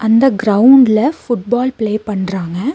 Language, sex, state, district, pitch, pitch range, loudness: Tamil, female, Tamil Nadu, Nilgiris, 225 Hz, 205-255 Hz, -13 LUFS